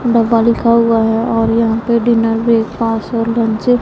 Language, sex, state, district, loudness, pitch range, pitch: Hindi, female, Punjab, Pathankot, -13 LUFS, 225-235 Hz, 230 Hz